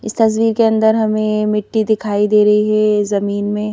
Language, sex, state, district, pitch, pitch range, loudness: Hindi, female, Madhya Pradesh, Bhopal, 215 Hz, 210-220 Hz, -15 LUFS